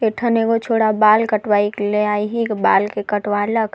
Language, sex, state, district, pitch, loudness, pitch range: Sadri, female, Chhattisgarh, Jashpur, 215 Hz, -17 LUFS, 205-225 Hz